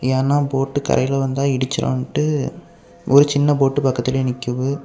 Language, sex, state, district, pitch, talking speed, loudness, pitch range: Tamil, male, Tamil Nadu, Kanyakumari, 135 Hz, 125 wpm, -19 LUFS, 130-145 Hz